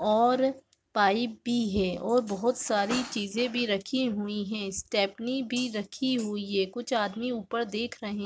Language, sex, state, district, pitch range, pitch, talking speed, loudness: Hindi, female, Chhattisgarh, Raigarh, 205-245 Hz, 230 Hz, 150 wpm, -29 LUFS